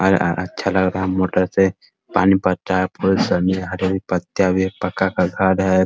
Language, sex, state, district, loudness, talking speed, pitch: Hindi, male, Bihar, Muzaffarpur, -19 LUFS, 245 wpm, 95 Hz